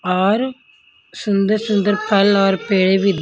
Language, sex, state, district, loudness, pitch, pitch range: Hindi, female, Punjab, Kapurthala, -16 LUFS, 200 Hz, 195-215 Hz